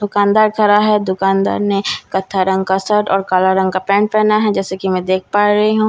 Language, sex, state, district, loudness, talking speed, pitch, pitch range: Hindi, female, Bihar, Katihar, -14 LUFS, 235 wpm, 200 Hz, 190-210 Hz